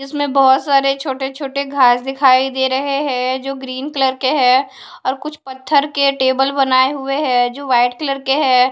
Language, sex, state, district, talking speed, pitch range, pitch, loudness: Hindi, female, Odisha, Khordha, 195 wpm, 260-275 Hz, 270 Hz, -16 LUFS